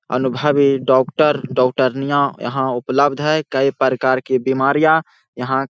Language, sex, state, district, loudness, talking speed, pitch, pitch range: Hindi, male, Bihar, Jahanabad, -17 LUFS, 125 wpm, 135 Hz, 130-145 Hz